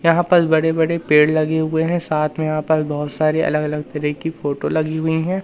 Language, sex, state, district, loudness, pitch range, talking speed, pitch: Hindi, male, Madhya Pradesh, Umaria, -18 LUFS, 150-160 Hz, 245 wpm, 155 Hz